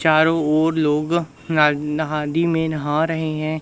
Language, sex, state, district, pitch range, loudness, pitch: Hindi, male, Madhya Pradesh, Umaria, 150-160 Hz, -20 LUFS, 155 Hz